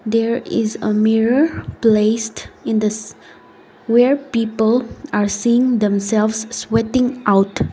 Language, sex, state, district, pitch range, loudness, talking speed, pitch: English, female, Nagaland, Kohima, 215-235 Hz, -17 LUFS, 110 wpm, 225 Hz